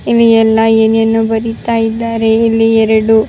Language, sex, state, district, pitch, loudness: Kannada, female, Karnataka, Raichur, 225 Hz, -11 LUFS